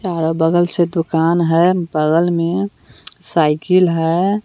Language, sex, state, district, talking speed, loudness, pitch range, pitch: Hindi, female, Bihar, West Champaran, 120 wpm, -16 LUFS, 165-180 Hz, 170 Hz